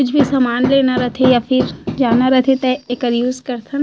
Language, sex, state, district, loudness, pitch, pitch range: Chhattisgarhi, female, Chhattisgarh, Raigarh, -15 LUFS, 255 Hz, 245-265 Hz